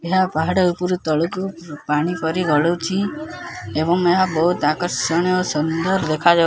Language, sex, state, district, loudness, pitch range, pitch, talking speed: Odia, male, Odisha, Khordha, -19 LUFS, 160-185 Hz, 175 Hz, 120 wpm